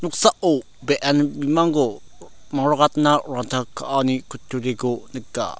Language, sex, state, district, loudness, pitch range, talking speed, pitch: Garo, male, Meghalaya, South Garo Hills, -21 LUFS, 125-150 Hz, 85 wpm, 140 Hz